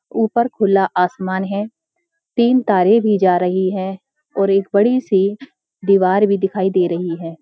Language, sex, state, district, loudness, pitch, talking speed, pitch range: Hindi, female, Uttarakhand, Uttarkashi, -17 LUFS, 195 Hz, 160 wpm, 190-230 Hz